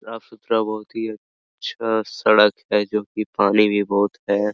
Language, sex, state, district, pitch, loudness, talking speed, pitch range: Hindi, male, Bihar, Araria, 105 Hz, -20 LUFS, 160 wpm, 105-110 Hz